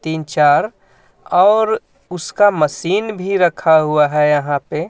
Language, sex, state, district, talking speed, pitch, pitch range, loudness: Hindi, male, Jharkhand, Ranchi, 135 wpm, 160 Hz, 150-190 Hz, -15 LUFS